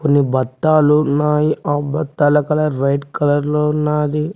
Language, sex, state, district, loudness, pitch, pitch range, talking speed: Telugu, male, Telangana, Mahabubabad, -16 LUFS, 150 Hz, 145-150 Hz, 125 wpm